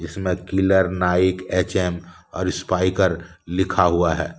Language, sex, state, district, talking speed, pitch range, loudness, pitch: Hindi, male, Jharkhand, Deoghar, 135 wpm, 85-95 Hz, -21 LUFS, 90 Hz